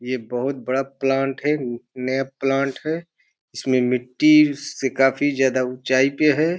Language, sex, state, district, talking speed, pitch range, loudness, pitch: Hindi, male, Uttar Pradesh, Ghazipur, 145 wpm, 130-145 Hz, -21 LUFS, 135 Hz